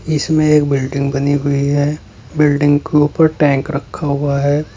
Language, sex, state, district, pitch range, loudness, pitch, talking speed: Hindi, male, Uttar Pradesh, Saharanpur, 140-150 Hz, -15 LUFS, 145 Hz, 165 wpm